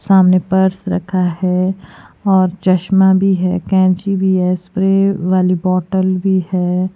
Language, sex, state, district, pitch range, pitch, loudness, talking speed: Hindi, female, Himachal Pradesh, Shimla, 185-190 Hz, 185 Hz, -14 LUFS, 140 wpm